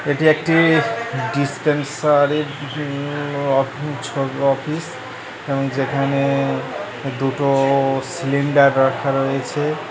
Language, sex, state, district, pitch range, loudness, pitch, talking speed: Bengali, male, West Bengal, North 24 Parganas, 135-145 Hz, -19 LUFS, 140 Hz, 90 wpm